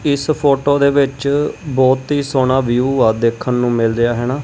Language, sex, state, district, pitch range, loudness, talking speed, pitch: Punjabi, male, Punjab, Kapurthala, 125-140 Hz, -15 LUFS, 190 wpm, 135 Hz